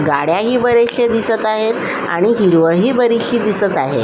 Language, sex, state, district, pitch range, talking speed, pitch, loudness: Marathi, female, Maharashtra, Solapur, 195-235 Hz, 135 wpm, 225 Hz, -14 LUFS